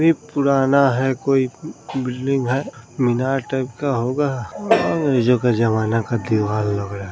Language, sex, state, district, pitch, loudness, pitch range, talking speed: Hindi, male, Bihar, Saran, 130 Hz, -20 LUFS, 115-135 Hz, 170 wpm